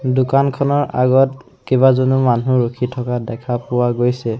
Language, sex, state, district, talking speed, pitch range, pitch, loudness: Assamese, male, Assam, Sonitpur, 125 wpm, 120-130 Hz, 125 Hz, -16 LUFS